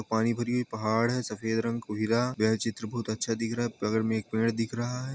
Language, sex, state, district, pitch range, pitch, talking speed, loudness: Hindi, male, Jharkhand, Sahebganj, 110-120 Hz, 115 Hz, 265 wpm, -29 LUFS